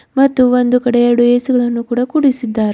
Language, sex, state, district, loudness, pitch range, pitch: Kannada, female, Karnataka, Bidar, -13 LUFS, 240-255 Hz, 245 Hz